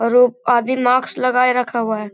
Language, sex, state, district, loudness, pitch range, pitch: Hindi, male, Bihar, Gaya, -16 LUFS, 235-250 Hz, 250 Hz